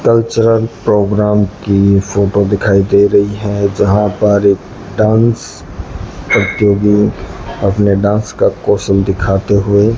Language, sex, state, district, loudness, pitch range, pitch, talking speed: Hindi, male, Rajasthan, Bikaner, -12 LUFS, 100-105 Hz, 100 Hz, 120 wpm